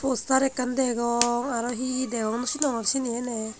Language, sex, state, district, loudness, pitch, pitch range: Chakma, female, Tripura, Unakoti, -25 LUFS, 245 Hz, 235-265 Hz